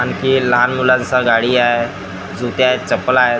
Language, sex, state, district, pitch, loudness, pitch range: Marathi, male, Maharashtra, Gondia, 125 Hz, -15 LUFS, 120-130 Hz